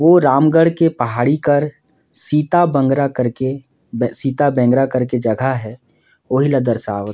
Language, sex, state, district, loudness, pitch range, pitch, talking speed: Surgujia, male, Chhattisgarh, Sarguja, -16 LUFS, 120-145 Hz, 135 Hz, 160 wpm